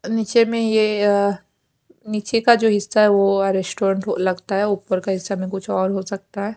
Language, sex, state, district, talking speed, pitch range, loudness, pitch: Hindi, female, Punjab, Kapurthala, 190 wpm, 195-220 Hz, -19 LUFS, 200 Hz